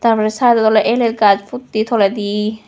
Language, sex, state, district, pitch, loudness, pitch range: Chakma, female, Tripura, West Tripura, 220 Hz, -15 LUFS, 210-235 Hz